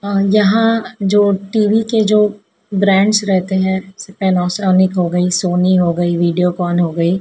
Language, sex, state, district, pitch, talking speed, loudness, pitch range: Hindi, female, Madhya Pradesh, Dhar, 190 Hz, 150 wpm, -14 LUFS, 180-205 Hz